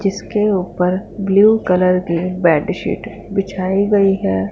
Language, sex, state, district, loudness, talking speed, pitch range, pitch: Hindi, female, Punjab, Fazilka, -16 LUFS, 120 wpm, 180-200 Hz, 190 Hz